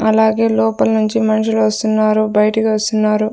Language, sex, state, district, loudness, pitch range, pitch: Telugu, female, Andhra Pradesh, Sri Satya Sai, -14 LUFS, 215-220 Hz, 215 Hz